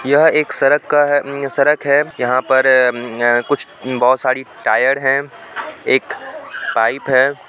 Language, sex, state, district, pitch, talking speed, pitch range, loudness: Hindi, male, Bihar, Supaul, 135 Hz, 160 wpm, 130-145 Hz, -15 LUFS